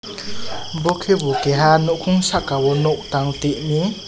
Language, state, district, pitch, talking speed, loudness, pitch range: Kokborok, Tripura, West Tripura, 155 Hz, 130 wpm, -18 LUFS, 145-180 Hz